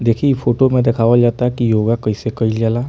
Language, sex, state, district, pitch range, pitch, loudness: Bhojpuri, male, Bihar, Muzaffarpur, 115-125 Hz, 120 Hz, -15 LUFS